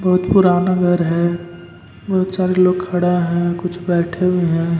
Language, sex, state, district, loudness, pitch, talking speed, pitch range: Hindi, male, Jharkhand, Ranchi, -17 LUFS, 180 Hz, 160 wpm, 175-185 Hz